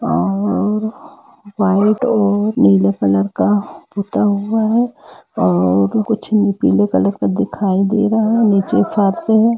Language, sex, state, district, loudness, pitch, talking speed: Hindi, female, Jharkhand, Jamtara, -15 LUFS, 205 Hz, 130 wpm